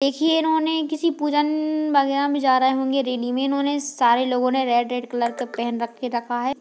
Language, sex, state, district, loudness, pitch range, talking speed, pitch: Hindi, female, Bihar, Jahanabad, -21 LUFS, 245-295 Hz, 210 wpm, 265 Hz